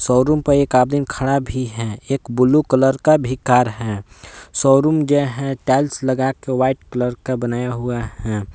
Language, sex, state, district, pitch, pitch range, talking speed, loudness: Hindi, male, Jharkhand, Palamu, 130 Hz, 120-135 Hz, 180 wpm, -18 LUFS